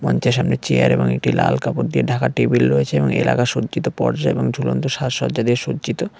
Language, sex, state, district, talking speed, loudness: Bengali, male, West Bengal, Cooch Behar, 195 wpm, -18 LUFS